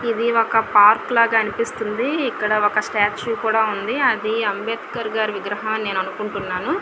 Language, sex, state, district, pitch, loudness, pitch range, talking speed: Telugu, female, Andhra Pradesh, Visakhapatnam, 220 Hz, -19 LUFS, 210-230 Hz, 150 wpm